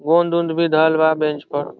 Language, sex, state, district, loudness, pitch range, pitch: Bhojpuri, male, Bihar, Saran, -18 LUFS, 150-170 Hz, 160 Hz